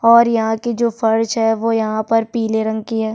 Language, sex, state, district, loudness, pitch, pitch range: Hindi, female, Chhattisgarh, Sukma, -17 LUFS, 225 Hz, 220-230 Hz